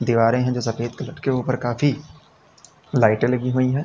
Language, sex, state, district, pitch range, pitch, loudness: Hindi, male, Uttar Pradesh, Lalitpur, 120-130 Hz, 125 Hz, -21 LUFS